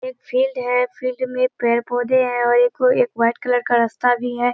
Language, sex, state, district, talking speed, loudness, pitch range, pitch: Hindi, female, Bihar, Kishanganj, 225 wpm, -19 LUFS, 240-255 Hz, 245 Hz